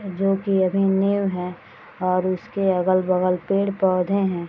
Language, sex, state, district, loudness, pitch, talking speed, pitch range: Hindi, female, Bihar, Madhepura, -21 LUFS, 190 Hz, 135 wpm, 185-195 Hz